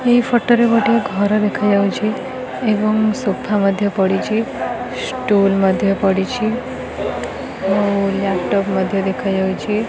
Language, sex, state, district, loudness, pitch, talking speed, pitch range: Odia, female, Odisha, Khordha, -17 LUFS, 205 Hz, 105 wpm, 195-230 Hz